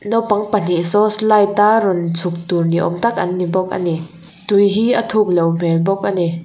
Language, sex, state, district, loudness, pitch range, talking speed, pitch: Mizo, female, Mizoram, Aizawl, -16 LUFS, 170-210 Hz, 215 wpm, 185 Hz